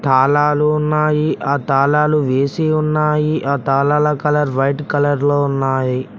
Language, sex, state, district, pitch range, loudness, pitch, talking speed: Telugu, male, Telangana, Mahabubabad, 135-150 Hz, -16 LUFS, 145 Hz, 125 wpm